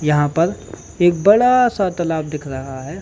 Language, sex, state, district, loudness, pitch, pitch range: Hindi, male, Chhattisgarh, Bilaspur, -17 LUFS, 165 Hz, 150-195 Hz